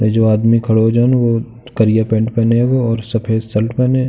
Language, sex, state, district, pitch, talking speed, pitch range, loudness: Hindi, male, Uttar Pradesh, Jalaun, 115 Hz, 205 wpm, 110-120 Hz, -14 LUFS